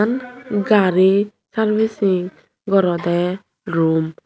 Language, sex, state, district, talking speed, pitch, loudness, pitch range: Chakma, female, Tripura, Unakoti, 70 wpm, 195 Hz, -18 LUFS, 175-215 Hz